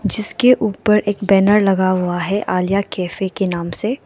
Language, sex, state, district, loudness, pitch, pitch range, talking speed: Hindi, female, Arunachal Pradesh, Lower Dibang Valley, -17 LUFS, 200 Hz, 185-210 Hz, 175 wpm